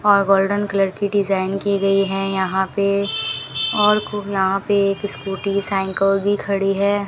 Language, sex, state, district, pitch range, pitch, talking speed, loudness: Hindi, female, Rajasthan, Bikaner, 195-200 Hz, 195 Hz, 160 wpm, -19 LUFS